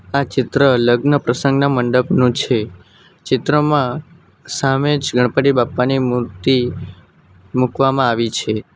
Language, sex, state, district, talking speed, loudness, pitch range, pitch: Gujarati, male, Gujarat, Valsad, 105 wpm, -16 LUFS, 120-140 Hz, 130 Hz